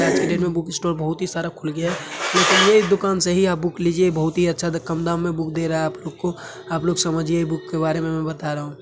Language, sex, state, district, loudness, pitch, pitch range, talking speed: Hindi, male, Uttar Pradesh, Hamirpur, -21 LUFS, 170 Hz, 160-175 Hz, 315 wpm